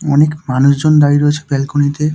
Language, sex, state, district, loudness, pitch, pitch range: Bengali, male, West Bengal, Dakshin Dinajpur, -13 LUFS, 145 Hz, 140-150 Hz